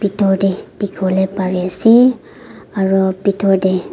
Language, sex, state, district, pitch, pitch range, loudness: Nagamese, female, Nagaland, Dimapur, 195 Hz, 190-200 Hz, -15 LUFS